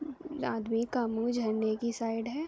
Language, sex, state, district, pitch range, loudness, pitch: Hindi, female, Uttar Pradesh, Deoria, 225-265 Hz, -32 LUFS, 235 Hz